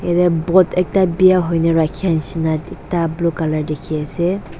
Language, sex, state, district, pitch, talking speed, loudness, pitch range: Nagamese, female, Nagaland, Dimapur, 170 Hz, 170 wpm, -17 LUFS, 160-180 Hz